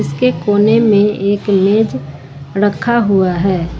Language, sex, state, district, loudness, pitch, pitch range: Hindi, female, Jharkhand, Ranchi, -13 LUFS, 195 Hz, 160-205 Hz